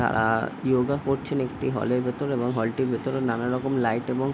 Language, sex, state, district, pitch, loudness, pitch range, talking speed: Bengali, male, West Bengal, Paschim Medinipur, 125 Hz, -26 LUFS, 120-135 Hz, 205 wpm